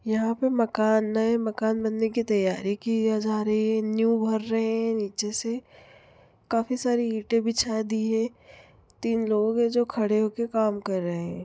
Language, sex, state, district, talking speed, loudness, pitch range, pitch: Hindi, female, Chhattisgarh, Rajnandgaon, 185 wpm, -26 LUFS, 215-230 Hz, 220 Hz